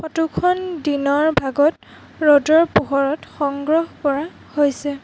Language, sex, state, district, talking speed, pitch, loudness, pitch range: Assamese, female, Assam, Sonitpur, 105 wpm, 295 Hz, -18 LUFS, 280-320 Hz